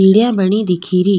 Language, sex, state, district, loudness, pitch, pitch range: Rajasthani, female, Rajasthan, Nagaur, -14 LUFS, 190 Hz, 185-210 Hz